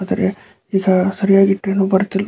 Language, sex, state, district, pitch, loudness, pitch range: Kannada, male, Karnataka, Dharwad, 195 Hz, -16 LUFS, 190-195 Hz